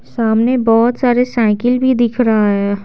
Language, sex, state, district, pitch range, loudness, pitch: Hindi, female, Bihar, Patna, 220-245 Hz, -13 LUFS, 235 Hz